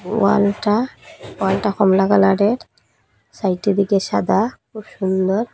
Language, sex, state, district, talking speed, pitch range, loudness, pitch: Bengali, female, Assam, Hailakandi, 95 wpm, 190-210 Hz, -18 LUFS, 200 Hz